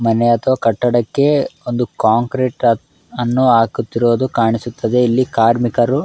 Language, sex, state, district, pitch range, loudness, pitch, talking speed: Kannada, male, Karnataka, Raichur, 115-130 Hz, -15 LUFS, 120 Hz, 110 wpm